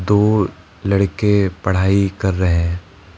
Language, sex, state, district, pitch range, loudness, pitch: Hindi, male, Rajasthan, Jaipur, 90-100 Hz, -17 LUFS, 95 Hz